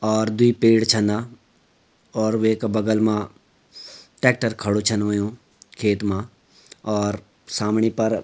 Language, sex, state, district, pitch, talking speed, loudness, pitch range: Garhwali, male, Uttarakhand, Uttarkashi, 110 Hz, 130 wpm, -21 LUFS, 105-110 Hz